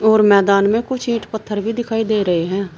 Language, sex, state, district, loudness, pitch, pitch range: Hindi, female, Uttar Pradesh, Saharanpur, -17 LUFS, 215 Hz, 200-225 Hz